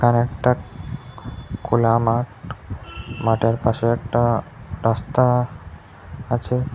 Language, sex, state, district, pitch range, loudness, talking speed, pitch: Bengali, male, Assam, Hailakandi, 110-120 Hz, -21 LUFS, 80 wpm, 115 Hz